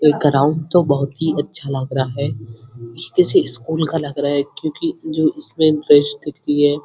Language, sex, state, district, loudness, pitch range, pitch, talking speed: Hindi, male, Uttarakhand, Uttarkashi, -18 LUFS, 140-160 Hz, 145 Hz, 175 wpm